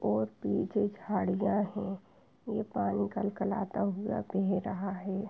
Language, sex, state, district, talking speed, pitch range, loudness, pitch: Hindi, female, Uttar Pradesh, Etah, 125 wpm, 185-205 Hz, -33 LUFS, 195 Hz